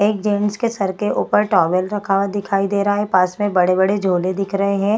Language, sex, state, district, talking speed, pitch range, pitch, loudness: Hindi, female, Bihar, Gaya, 250 wpm, 190-205 Hz, 200 Hz, -18 LUFS